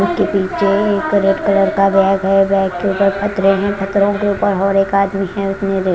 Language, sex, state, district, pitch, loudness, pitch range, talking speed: Hindi, female, Chandigarh, Chandigarh, 195 Hz, -15 LUFS, 195-200 Hz, 200 wpm